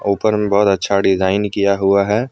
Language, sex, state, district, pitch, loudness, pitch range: Hindi, male, Jharkhand, Deoghar, 100 Hz, -15 LUFS, 100-105 Hz